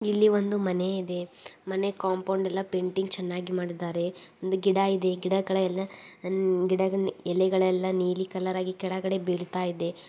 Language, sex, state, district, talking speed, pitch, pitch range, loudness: Kannada, female, Karnataka, Gulbarga, 145 wpm, 185 Hz, 180-190 Hz, -28 LUFS